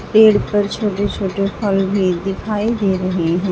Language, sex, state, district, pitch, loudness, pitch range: Hindi, female, Uttar Pradesh, Saharanpur, 195 Hz, -17 LUFS, 190-210 Hz